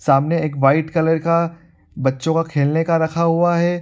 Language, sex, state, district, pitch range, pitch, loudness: Hindi, male, Bihar, Supaul, 150-170 Hz, 165 Hz, -18 LUFS